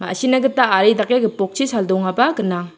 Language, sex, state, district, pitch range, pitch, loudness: Garo, female, Meghalaya, South Garo Hills, 190-250 Hz, 215 Hz, -17 LUFS